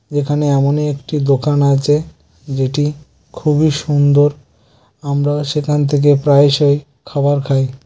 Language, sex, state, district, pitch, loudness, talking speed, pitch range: Bengali, male, West Bengal, Kolkata, 145 Hz, -15 LUFS, 115 wpm, 140-145 Hz